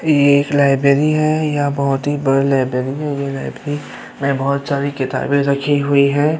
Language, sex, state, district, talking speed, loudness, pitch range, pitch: Hindi, male, Uttar Pradesh, Hamirpur, 180 wpm, -16 LUFS, 140-145 Hz, 140 Hz